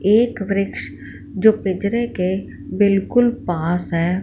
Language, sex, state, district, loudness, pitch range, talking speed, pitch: Hindi, female, Punjab, Fazilka, -19 LUFS, 175-215 Hz, 115 wpm, 195 Hz